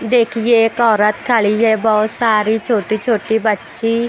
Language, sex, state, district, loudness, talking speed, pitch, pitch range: Hindi, female, Bihar, Patna, -15 LUFS, 130 wpm, 225 Hz, 215-230 Hz